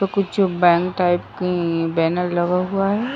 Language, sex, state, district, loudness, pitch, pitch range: Hindi, female, Uttar Pradesh, Ghazipur, -19 LUFS, 180 Hz, 175-195 Hz